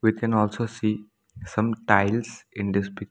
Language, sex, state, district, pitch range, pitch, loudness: English, male, Assam, Sonitpur, 100-115 Hz, 105 Hz, -25 LUFS